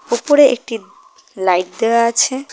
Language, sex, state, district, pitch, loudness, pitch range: Bengali, female, West Bengal, Cooch Behar, 235 Hz, -15 LUFS, 225-285 Hz